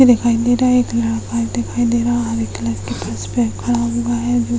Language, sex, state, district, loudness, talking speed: Hindi, female, Uttar Pradesh, Hamirpur, -18 LUFS, 260 wpm